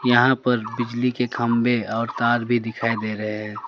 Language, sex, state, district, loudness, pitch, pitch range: Hindi, male, West Bengal, Alipurduar, -22 LUFS, 120 Hz, 110-120 Hz